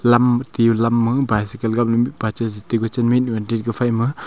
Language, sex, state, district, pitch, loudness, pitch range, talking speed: Wancho, male, Arunachal Pradesh, Longding, 115 Hz, -19 LUFS, 115-120 Hz, 225 wpm